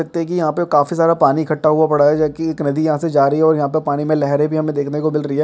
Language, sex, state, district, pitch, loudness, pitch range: Hindi, male, Chhattisgarh, Sukma, 155 Hz, -16 LUFS, 145-160 Hz